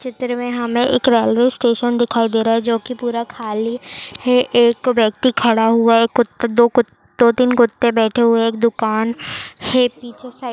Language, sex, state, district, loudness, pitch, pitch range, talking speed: Hindi, female, Bihar, Saharsa, -16 LUFS, 235 Hz, 230-245 Hz, 195 wpm